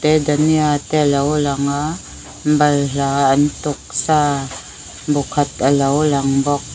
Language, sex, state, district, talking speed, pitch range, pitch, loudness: Mizo, female, Mizoram, Aizawl, 140 wpm, 140-150 Hz, 145 Hz, -17 LUFS